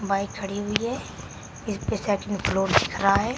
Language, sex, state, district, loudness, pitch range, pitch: Hindi, female, Uttar Pradesh, Shamli, -25 LUFS, 195-210 Hz, 200 Hz